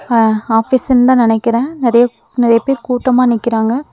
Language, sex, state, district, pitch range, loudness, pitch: Tamil, female, Tamil Nadu, Nilgiris, 230-255 Hz, -13 LUFS, 240 Hz